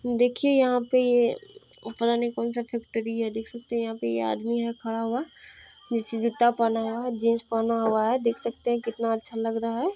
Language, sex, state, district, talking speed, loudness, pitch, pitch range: Hindi, female, Bihar, Purnia, 215 wpm, -26 LUFS, 235 Hz, 225-240 Hz